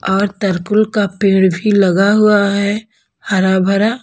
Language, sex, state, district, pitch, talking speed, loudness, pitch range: Hindi, female, Bihar, Patna, 200 Hz, 150 wpm, -14 LUFS, 190-210 Hz